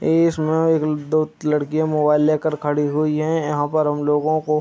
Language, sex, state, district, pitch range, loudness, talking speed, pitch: Hindi, male, Bihar, Madhepura, 150-155 Hz, -19 LUFS, 180 wpm, 155 Hz